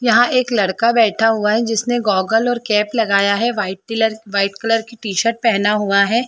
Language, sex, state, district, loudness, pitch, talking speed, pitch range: Hindi, female, Chhattisgarh, Sarguja, -16 LUFS, 225 Hz, 200 wpm, 205-235 Hz